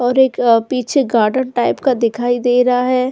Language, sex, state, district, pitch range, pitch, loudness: Hindi, female, Goa, North and South Goa, 240-255 Hz, 250 Hz, -15 LUFS